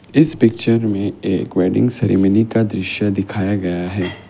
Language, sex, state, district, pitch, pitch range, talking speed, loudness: Hindi, male, Assam, Kamrup Metropolitan, 100 Hz, 95-115 Hz, 155 wpm, -17 LUFS